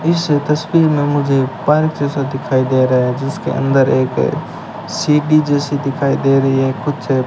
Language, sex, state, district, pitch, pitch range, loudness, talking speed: Hindi, male, Rajasthan, Bikaner, 140 Hz, 135-150 Hz, -15 LUFS, 180 wpm